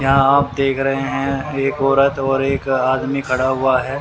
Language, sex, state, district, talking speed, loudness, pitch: Hindi, male, Haryana, Rohtak, 195 wpm, -17 LUFS, 135 Hz